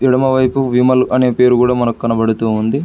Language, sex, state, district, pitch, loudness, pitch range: Telugu, male, Telangana, Hyderabad, 125 Hz, -13 LUFS, 115-130 Hz